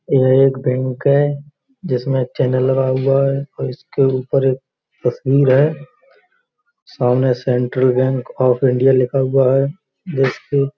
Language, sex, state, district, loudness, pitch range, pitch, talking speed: Hindi, male, Uttar Pradesh, Budaun, -16 LUFS, 130-140 Hz, 135 Hz, 140 wpm